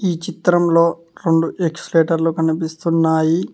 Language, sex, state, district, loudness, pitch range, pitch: Telugu, male, Telangana, Mahabubabad, -17 LUFS, 160-170 Hz, 165 Hz